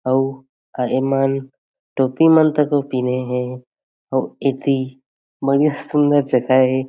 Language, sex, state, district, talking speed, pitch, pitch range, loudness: Chhattisgarhi, male, Chhattisgarh, Jashpur, 130 wpm, 135 Hz, 130-140 Hz, -18 LUFS